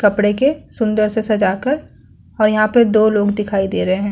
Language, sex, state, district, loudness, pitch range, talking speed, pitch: Hindi, female, Uttar Pradesh, Hamirpur, -16 LUFS, 205-220 Hz, 205 wpm, 215 Hz